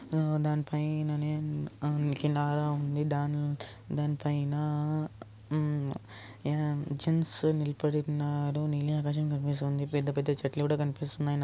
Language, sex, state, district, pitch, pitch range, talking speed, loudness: Telugu, male, Andhra Pradesh, Anantapur, 145 Hz, 145-150 Hz, 100 wpm, -31 LUFS